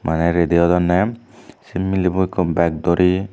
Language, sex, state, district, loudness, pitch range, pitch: Chakma, male, Tripura, Dhalai, -18 LUFS, 85-95 Hz, 90 Hz